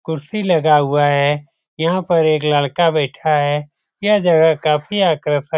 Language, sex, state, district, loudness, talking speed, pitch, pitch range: Hindi, male, Bihar, Jamui, -16 LUFS, 160 wpm, 155 Hz, 145-170 Hz